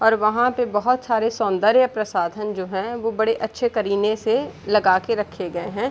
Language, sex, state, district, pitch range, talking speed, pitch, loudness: Hindi, female, Bihar, Gopalganj, 200-225 Hz, 195 wpm, 215 Hz, -21 LUFS